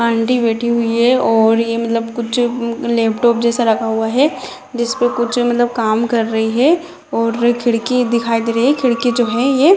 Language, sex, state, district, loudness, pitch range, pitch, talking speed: Hindi, female, Bihar, Jamui, -15 LUFS, 230-245 Hz, 235 Hz, 190 wpm